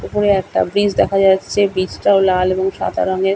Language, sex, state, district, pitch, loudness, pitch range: Bengali, male, West Bengal, Kolkata, 195 Hz, -16 LUFS, 190-200 Hz